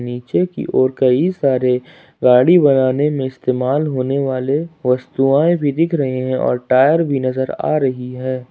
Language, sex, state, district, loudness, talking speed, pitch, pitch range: Hindi, male, Jharkhand, Ranchi, -16 LUFS, 160 wpm, 130 Hz, 125-140 Hz